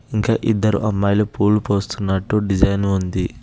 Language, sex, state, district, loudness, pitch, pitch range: Telugu, male, Telangana, Hyderabad, -19 LUFS, 100 Hz, 100-105 Hz